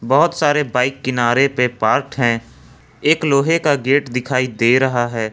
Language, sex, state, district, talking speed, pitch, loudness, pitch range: Hindi, male, Jharkhand, Ranchi, 170 wpm, 130 Hz, -17 LUFS, 120-140 Hz